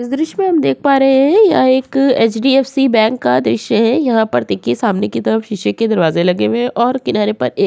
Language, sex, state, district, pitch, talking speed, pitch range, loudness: Hindi, female, Uttar Pradesh, Hamirpur, 230 Hz, 250 wpm, 195-270 Hz, -13 LUFS